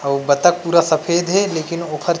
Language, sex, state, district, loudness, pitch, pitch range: Chhattisgarhi, male, Chhattisgarh, Rajnandgaon, -17 LUFS, 170 Hz, 155-175 Hz